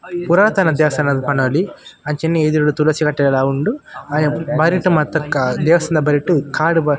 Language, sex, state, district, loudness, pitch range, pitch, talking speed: Tulu, male, Karnataka, Dakshina Kannada, -16 LUFS, 145-165 Hz, 155 Hz, 130 wpm